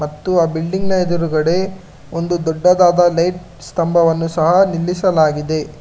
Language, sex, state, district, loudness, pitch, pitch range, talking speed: Kannada, male, Karnataka, Bangalore, -16 LUFS, 170 Hz, 160-180 Hz, 105 wpm